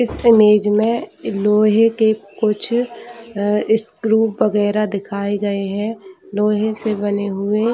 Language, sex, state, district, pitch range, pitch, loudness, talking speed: Hindi, female, Chhattisgarh, Bilaspur, 205-225 Hz, 215 Hz, -17 LUFS, 125 wpm